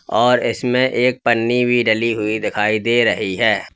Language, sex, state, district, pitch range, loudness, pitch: Hindi, male, Uttar Pradesh, Lalitpur, 110-125 Hz, -17 LUFS, 120 Hz